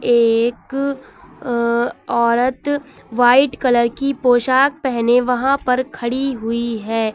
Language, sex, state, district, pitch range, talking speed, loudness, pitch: Hindi, female, Uttar Pradesh, Lucknow, 235-270 Hz, 110 wpm, -17 LUFS, 245 Hz